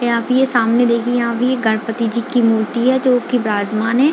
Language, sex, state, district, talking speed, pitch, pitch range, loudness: Hindi, female, Chhattisgarh, Bilaspur, 260 wpm, 235 Hz, 225-245 Hz, -16 LUFS